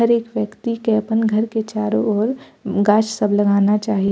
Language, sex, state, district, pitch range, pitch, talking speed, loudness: Maithili, female, Bihar, Purnia, 205-225 Hz, 215 Hz, 175 wpm, -18 LUFS